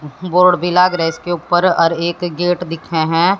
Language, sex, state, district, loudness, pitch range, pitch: Hindi, female, Haryana, Jhajjar, -15 LUFS, 165-180 Hz, 175 Hz